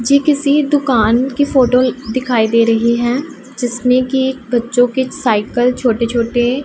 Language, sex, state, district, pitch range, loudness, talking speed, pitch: Hindi, female, Punjab, Pathankot, 235-265 Hz, -14 LUFS, 145 wpm, 250 Hz